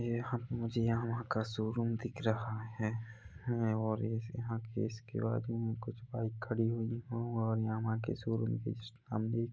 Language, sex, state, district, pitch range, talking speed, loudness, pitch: Hindi, male, Chhattisgarh, Rajnandgaon, 110-120 Hz, 180 wpm, -37 LUFS, 115 Hz